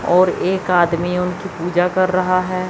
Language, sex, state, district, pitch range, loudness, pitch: Hindi, female, Chandigarh, Chandigarh, 180-185 Hz, -17 LUFS, 180 Hz